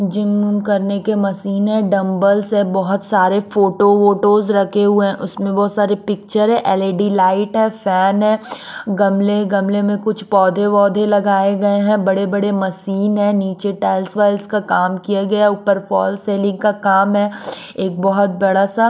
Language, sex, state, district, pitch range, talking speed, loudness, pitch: Hindi, female, Maharashtra, Mumbai Suburban, 195-205 Hz, 170 wpm, -16 LUFS, 200 Hz